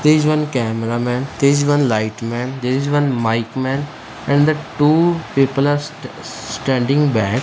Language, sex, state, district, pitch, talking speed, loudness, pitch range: English, male, Punjab, Fazilka, 135 Hz, 175 wpm, -17 LUFS, 120-145 Hz